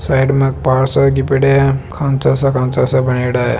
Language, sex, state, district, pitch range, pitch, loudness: Hindi, male, Rajasthan, Nagaur, 130-135 Hz, 135 Hz, -14 LUFS